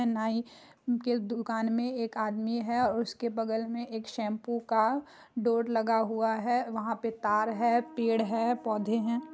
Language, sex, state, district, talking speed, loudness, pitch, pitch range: Hindi, female, Bihar, Muzaffarpur, 160 wpm, -30 LUFS, 230 Hz, 225-235 Hz